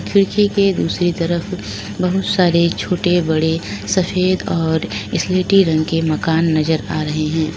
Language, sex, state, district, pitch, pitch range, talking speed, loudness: Hindi, female, Uttar Pradesh, Lalitpur, 175 Hz, 160-185 Hz, 140 wpm, -17 LUFS